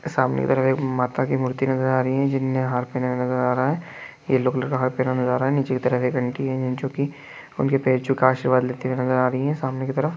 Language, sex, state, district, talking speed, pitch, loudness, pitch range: Hindi, male, Chhattisgarh, Balrampur, 275 wpm, 130 Hz, -22 LUFS, 125-135 Hz